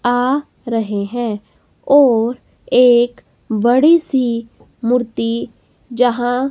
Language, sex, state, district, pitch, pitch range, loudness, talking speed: Hindi, female, Himachal Pradesh, Shimla, 245 Hz, 230-255 Hz, -16 LUFS, 85 wpm